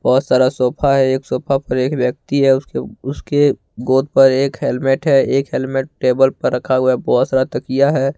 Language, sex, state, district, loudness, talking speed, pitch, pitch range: Hindi, male, Jharkhand, Ranchi, -16 LUFS, 190 wpm, 135 Hz, 130-140 Hz